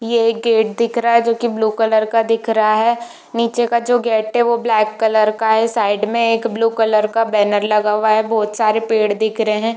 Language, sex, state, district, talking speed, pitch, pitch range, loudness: Hindi, female, Jharkhand, Jamtara, 245 wpm, 225 Hz, 215-235 Hz, -16 LUFS